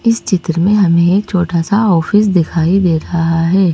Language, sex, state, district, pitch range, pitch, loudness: Hindi, female, Madhya Pradesh, Bhopal, 170-200 Hz, 180 Hz, -13 LUFS